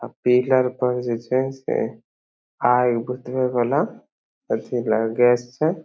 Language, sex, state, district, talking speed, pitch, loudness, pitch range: Maithili, male, Bihar, Samastipur, 125 wpm, 125 Hz, -21 LUFS, 120-130 Hz